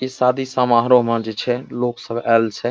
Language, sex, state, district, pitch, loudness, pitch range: Maithili, male, Bihar, Saharsa, 120 Hz, -18 LUFS, 115-125 Hz